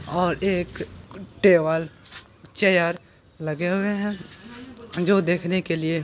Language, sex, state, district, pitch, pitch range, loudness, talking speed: Hindi, female, Bihar, Purnia, 180 Hz, 170-195 Hz, -23 LUFS, 120 wpm